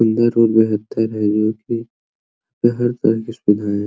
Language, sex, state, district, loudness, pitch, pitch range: Hindi, male, Uttar Pradesh, Hamirpur, -18 LUFS, 110 Hz, 105-115 Hz